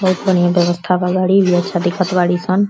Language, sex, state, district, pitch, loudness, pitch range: Bhojpuri, female, Uttar Pradesh, Deoria, 180 Hz, -15 LUFS, 175-185 Hz